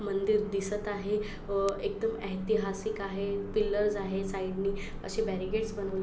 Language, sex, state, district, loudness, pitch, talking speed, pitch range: Marathi, female, Maharashtra, Pune, -32 LUFS, 200 Hz, 140 wpm, 195-210 Hz